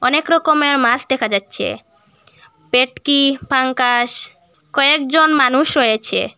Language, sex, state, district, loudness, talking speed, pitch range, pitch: Bengali, female, Assam, Hailakandi, -15 LUFS, 95 wpm, 245-290 Hz, 265 Hz